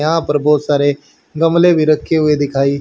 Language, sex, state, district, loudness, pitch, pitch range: Hindi, male, Haryana, Jhajjar, -14 LUFS, 150 Hz, 145-160 Hz